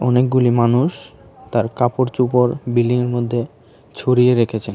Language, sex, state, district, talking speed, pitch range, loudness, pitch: Bengali, male, Tripura, West Tripura, 100 wpm, 120-125 Hz, -17 LUFS, 120 Hz